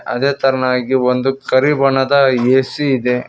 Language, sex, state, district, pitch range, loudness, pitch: Kannada, male, Karnataka, Koppal, 130-135 Hz, -14 LUFS, 130 Hz